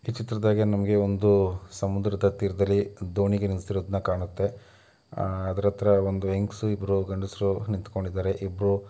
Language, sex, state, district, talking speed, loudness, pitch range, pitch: Kannada, male, Karnataka, Mysore, 120 wpm, -27 LUFS, 95-100 Hz, 100 Hz